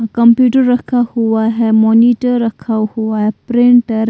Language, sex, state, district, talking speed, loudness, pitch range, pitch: Hindi, female, Bihar, Katihar, 145 wpm, -12 LUFS, 220-245 Hz, 230 Hz